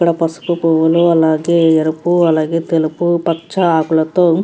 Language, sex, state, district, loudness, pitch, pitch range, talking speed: Telugu, female, Andhra Pradesh, Krishna, -14 LUFS, 165 Hz, 160-170 Hz, 135 wpm